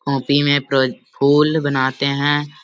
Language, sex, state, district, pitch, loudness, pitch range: Hindi, male, Bihar, Samastipur, 140 Hz, -17 LUFS, 135-145 Hz